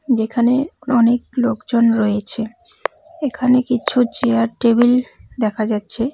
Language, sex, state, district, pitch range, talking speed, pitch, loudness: Bengali, female, West Bengal, Cooch Behar, 230-255 Hz, 100 wpm, 240 Hz, -17 LUFS